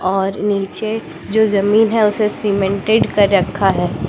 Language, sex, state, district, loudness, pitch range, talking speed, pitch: Hindi, female, Bihar, West Champaran, -16 LUFS, 195-215 Hz, 145 wpm, 200 Hz